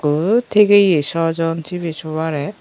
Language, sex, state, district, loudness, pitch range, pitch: Chakma, female, Tripura, Unakoti, -17 LUFS, 160-200 Hz, 165 Hz